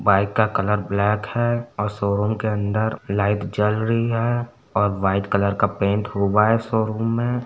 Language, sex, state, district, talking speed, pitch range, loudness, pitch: Hindi, male, Uttar Pradesh, Etah, 175 wpm, 100-115 Hz, -21 LUFS, 105 Hz